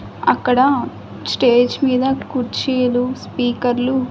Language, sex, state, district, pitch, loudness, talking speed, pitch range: Telugu, female, Andhra Pradesh, Annamaya, 250 Hz, -17 LUFS, 90 wpm, 245-265 Hz